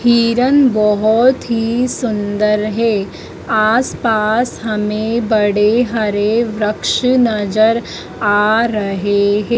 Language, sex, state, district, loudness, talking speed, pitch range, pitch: Hindi, female, Madhya Pradesh, Dhar, -14 LUFS, 95 wpm, 210-235 Hz, 220 Hz